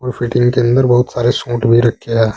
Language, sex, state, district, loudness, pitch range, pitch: Hindi, male, Uttar Pradesh, Saharanpur, -14 LUFS, 115-125 Hz, 120 Hz